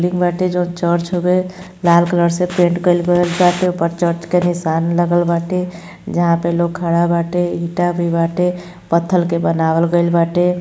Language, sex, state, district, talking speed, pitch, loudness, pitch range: Bhojpuri, female, Uttar Pradesh, Gorakhpur, 175 wpm, 175 Hz, -16 LUFS, 170-180 Hz